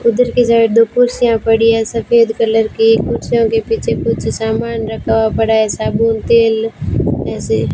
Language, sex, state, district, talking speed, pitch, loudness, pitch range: Hindi, female, Rajasthan, Bikaner, 170 wpm, 225 Hz, -14 LUFS, 225-230 Hz